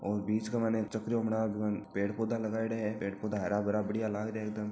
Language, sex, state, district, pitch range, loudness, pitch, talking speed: Marwari, male, Rajasthan, Nagaur, 105-110 Hz, -34 LUFS, 110 Hz, 280 wpm